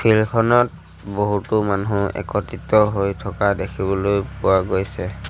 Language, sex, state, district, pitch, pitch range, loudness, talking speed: Assamese, male, Assam, Sonitpur, 100 Hz, 95-110 Hz, -20 LUFS, 115 wpm